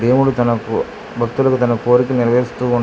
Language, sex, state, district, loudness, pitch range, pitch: Telugu, male, Andhra Pradesh, Krishna, -16 LUFS, 120-125 Hz, 120 Hz